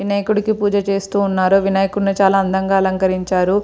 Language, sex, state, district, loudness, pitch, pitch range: Telugu, female, Andhra Pradesh, Srikakulam, -16 LUFS, 195 Hz, 190-200 Hz